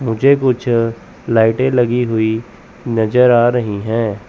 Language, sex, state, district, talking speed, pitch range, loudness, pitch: Hindi, male, Chandigarh, Chandigarh, 140 wpm, 110-125 Hz, -15 LUFS, 115 Hz